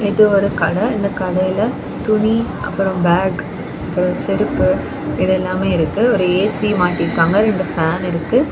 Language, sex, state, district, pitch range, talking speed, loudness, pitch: Tamil, female, Tamil Nadu, Kanyakumari, 180-210 Hz, 140 wpm, -17 LUFS, 190 Hz